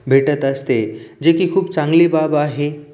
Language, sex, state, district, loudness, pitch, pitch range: Marathi, male, Maharashtra, Aurangabad, -16 LUFS, 150 Hz, 145-165 Hz